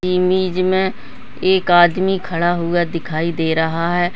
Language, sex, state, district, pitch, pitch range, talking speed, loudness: Hindi, female, Uttarakhand, Tehri Garhwal, 175 Hz, 170-185 Hz, 145 wpm, -17 LUFS